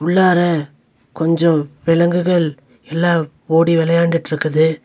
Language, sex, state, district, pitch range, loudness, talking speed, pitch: Tamil, male, Tamil Nadu, Nilgiris, 155-170 Hz, -16 LUFS, 75 wpm, 165 Hz